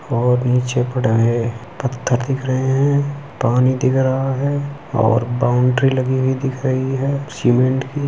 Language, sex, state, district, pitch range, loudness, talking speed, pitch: Hindi, male, Uttar Pradesh, Etah, 125-135 Hz, -18 LUFS, 140 wpm, 130 Hz